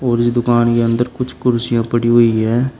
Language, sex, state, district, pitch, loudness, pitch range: Hindi, male, Uttar Pradesh, Shamli, 120 Hz, -15 LUFS, 115-120 Hz